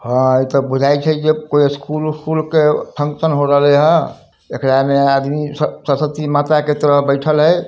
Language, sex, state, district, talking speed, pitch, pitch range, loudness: Hindi, male, Bihar, Samastipur, 180 wpm, 145 Hz, 140-155 Hz, -15 LUFS